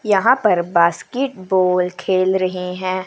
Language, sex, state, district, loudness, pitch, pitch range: Hindi, female, Chandigarh, Chandigarh, -18 LUFS, 185 Hz, 180-195 Hz